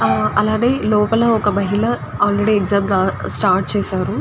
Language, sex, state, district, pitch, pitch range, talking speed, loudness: Telugu, female, Andhra Pradesh, Guntur, 205 Hz, 200-220 Hz, 115 wpm, -17 LUFS